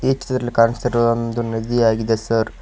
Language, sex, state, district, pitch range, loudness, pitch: Kannada, male, Karnataka, Koppal, 115-120 Hz, -19 LUFS, 115 Hz